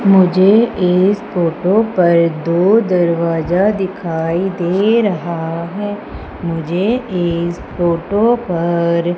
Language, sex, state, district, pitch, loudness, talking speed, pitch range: Hindi, female, Madhya Pradesh, Umaria, 180 Hz, -15 LUFS, 90 wpm, 170-200 Hz